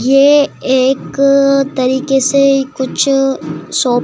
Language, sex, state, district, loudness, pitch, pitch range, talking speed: Hindi, male, Madhya Pradesh, Dhar, -12 LUFS, 270 Hz, 260-275 Hz, 105 wpm